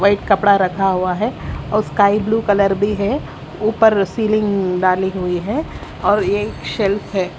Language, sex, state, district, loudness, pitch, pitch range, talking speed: Hindi, female, Haryana, Charkhi Dadri, -17 LUFS, 200 Hz, 190-210 Hz, 160 wpm